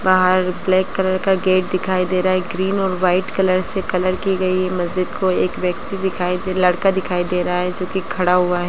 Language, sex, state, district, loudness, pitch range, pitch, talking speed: Hindi, female, Bihar, Gaya, -18 LUFS, 180-185 Hz, 185 Hz, 240 wpm